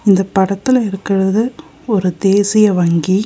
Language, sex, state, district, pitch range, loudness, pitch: Tamil, female, Tamil Nadu, Nilgiris, 190-215 Hz, -14 LUFS, 195 Hz